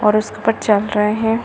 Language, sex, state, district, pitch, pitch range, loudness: Hindi, female, Chhattisgarh, Bilaspur, 215 Hz, 210-225 Hz, -17 LUFS